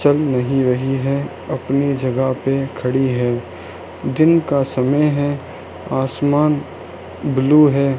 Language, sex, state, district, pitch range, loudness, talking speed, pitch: Hindi, male, Rajasthan, Bikaner, 130-145 Hz, -18 LUFS, 120 wpm, 135 Hz